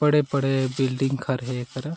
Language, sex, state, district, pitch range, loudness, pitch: Chhattisgarhi, male, Chhattisgarh, Sarguja, 130-140 Hz, -24 LUFS, 135 Hz